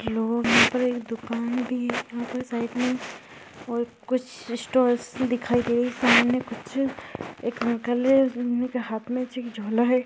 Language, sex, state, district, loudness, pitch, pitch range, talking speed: Hindi, female, Maharashtra, Chandrapur, -25 LUFS, 245 Hz, 235-250 Hz, 155 wpm